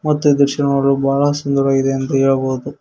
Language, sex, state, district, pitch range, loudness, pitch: Kannada, male, Karnataka, Koppal, 135-145 Hz, -16 LUFS, 140 Hz